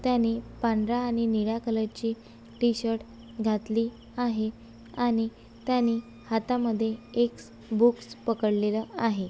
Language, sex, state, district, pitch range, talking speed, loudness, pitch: Marathi, female, Maharashtra, Sindhudurg, 220-235 Hz, 110 wpm, -28 LUFS, 230 Hz